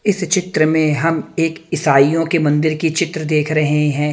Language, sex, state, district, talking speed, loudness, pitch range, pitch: Hindi, male, Haryana, Charkhi Dadri, 190 wpm, -16 LUFS, 150-165 Hz, 155 Hz